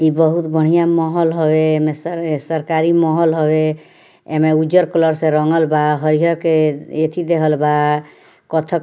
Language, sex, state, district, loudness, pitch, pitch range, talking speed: Bhojpuri, female, Bihar, Muzaffarpur, -16 LUFS, 160 Hz, 155-165 Hz, 165 wpm